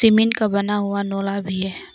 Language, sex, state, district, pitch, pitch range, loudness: Hindi, female, Arunachal Pradesh, Longding, 200 Hz, 195-215 Hz, -21 LUFS